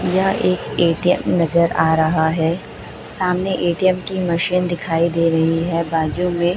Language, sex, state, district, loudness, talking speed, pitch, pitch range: Hindi, female, Chhattisgarh, Raipur, -18 LUFS, 155 wpm, 170 Hz, 165-180 Hz